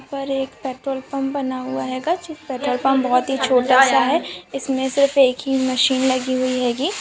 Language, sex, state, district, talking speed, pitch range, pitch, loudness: Hindi, female, Bihar, Araria, 190 wpm, 255-275 Hz, 265 Hz, -19 LUFS